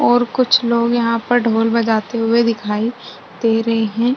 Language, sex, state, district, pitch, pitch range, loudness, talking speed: Hindi, female, Bihar, Saharsa, 230 Hz, 225-240 Hz, -16 LUFS, 175 wpm